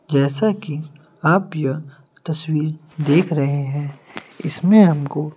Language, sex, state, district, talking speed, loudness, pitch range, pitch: Hindi, male, Bihar, Kaimur, 110 wpm, -19 LUFS, 145-165 Hz, 155 Hz